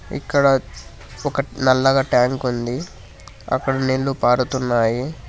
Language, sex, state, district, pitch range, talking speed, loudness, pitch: Telugu, male, Telangana, Hyderabad, 120-135 Hz, 90 wpm, -19 LUFS, 130 Hz